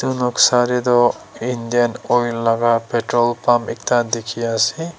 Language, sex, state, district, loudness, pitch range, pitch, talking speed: Nagamese, male, Nagaland, Dimapur, -18 LUFS, 115-125 Hz, 120 Hz, 145 wpm